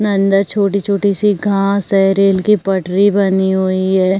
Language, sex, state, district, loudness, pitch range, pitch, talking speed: Hindi, female, Uttar Pradesh, Jyotiba Phule Nagar, -14 LUFS, 190-200 Hz, 195 Hz, 145 wpm